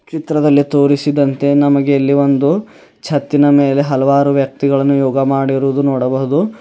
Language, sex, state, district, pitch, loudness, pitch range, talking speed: Kannada, male, Karnataka, Bidar, 140 Hz, -13 LUFS, 135-145 Hz, 110 wpm